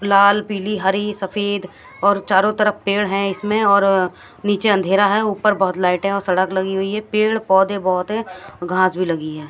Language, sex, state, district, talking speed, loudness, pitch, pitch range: Hindi, female, Haryana, Jhajjar, 195 wpm, -18 LUFS, 200 Hz, 190-205 Hz